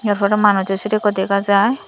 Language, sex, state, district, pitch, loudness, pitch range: Chakma, female, Tripura, Dhalai, 205 Hz, -16 LUFS, 200-210 Hz